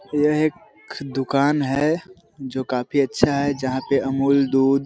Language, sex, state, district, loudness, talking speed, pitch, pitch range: Hindi, male, Chhattisgarh, Korba, -21 LUFS, 150 wpm, 140 Hz, 135-150 Hz